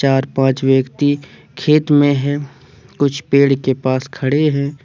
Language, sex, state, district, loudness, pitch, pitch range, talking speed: Hindi, male, Jharkhand, Deoghar, -16 LUFS, 140 Hz, 135-145 Hz, 150 wpm